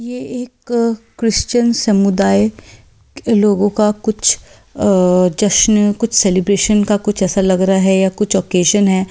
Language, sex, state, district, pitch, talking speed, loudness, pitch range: Hindi, female, Delhi, New Delhi, 205 Hz, 145 wpm, -14 LUFS, 190-220 Hz